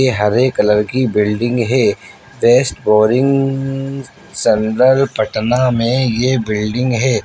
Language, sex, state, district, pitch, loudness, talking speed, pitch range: Hindi, male, Bihar, Muzaffarpur, 125 Hz, -15 LUFS, 115 wpm, 110-130 Hz